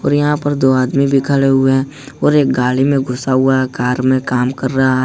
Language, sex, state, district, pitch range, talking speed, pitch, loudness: Hindi, male, Jharkhand, Ranchi, 130-140 Hz, 260 wpm, 135 Hz, -14 LUFS